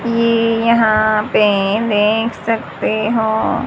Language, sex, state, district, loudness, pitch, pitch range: Hindi, female, Haryana, Jhajjar, -15 LUFS, 220 Hz, 215-230 Hz